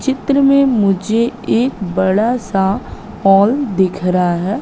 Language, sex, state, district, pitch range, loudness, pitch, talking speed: Hindi, female, Madhya Pradesh, Katni, 190-250 Hz, -15 LUFS, 210 Hz, 130 wpm